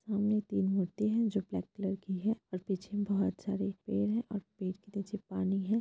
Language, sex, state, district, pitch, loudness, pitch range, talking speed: Hindi, female, Bihar, Purnia, 200 Hz, -35 LUFS, 195-210 Hz, 215 wpm